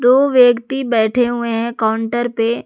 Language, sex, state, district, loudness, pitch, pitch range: Hindi, female, Jharkhand, Garhwa, -15 LUFS, 240 Hz, 230-250 Hz